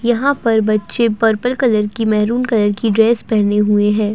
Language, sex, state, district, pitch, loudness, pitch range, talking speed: Hindi, female, Uttarakhand, Uttarkashi, 220 Hz, -15 LUFS, 210-235 Hz, 190 wpm